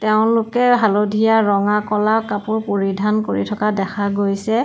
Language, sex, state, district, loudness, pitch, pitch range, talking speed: Assamese, female, Assam, Sonitpur, -17 LUFS, 210 Hz, 205-220 Hz, 140 wpm